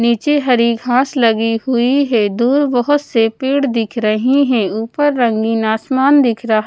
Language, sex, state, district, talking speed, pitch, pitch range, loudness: Hindi, female, Odisha, Nuapada, 160 wpm, 240 Hz, 225-270 Hz, -14 LUFS